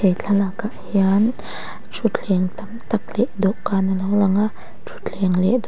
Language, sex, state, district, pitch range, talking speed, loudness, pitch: Mizo, female, Mizoram, Aizawl, 190-215 Hz, 170 wpm, -21 LUFS, 200 Hz